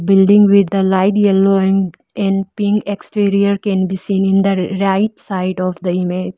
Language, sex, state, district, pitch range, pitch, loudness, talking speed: English, female, Arunachal Pradesh, Lower Dibang Valley, 190-200 Hz, 195 Hz, -15 LUFS, 180 wpm